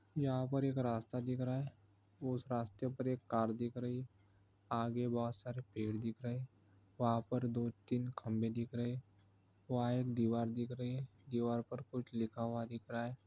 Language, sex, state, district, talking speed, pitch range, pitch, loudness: Hindi, male, Bihar, Begusarai, 200 wpm, 115-125 Hz, 120 Hz, -40 LUFS